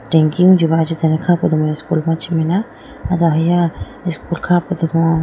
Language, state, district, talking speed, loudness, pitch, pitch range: Idu Mishmi, Arunachal Pradesh, Lower Dibang Valley, 205 wpm, -16 LUFS, 165 Hz, 160-175 Hz